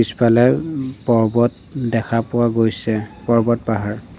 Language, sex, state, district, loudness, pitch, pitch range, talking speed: Assamese, male, Assam, Sonitpur, -18 LUFS, 115 Hz, 110-120 Hz, 115 wpm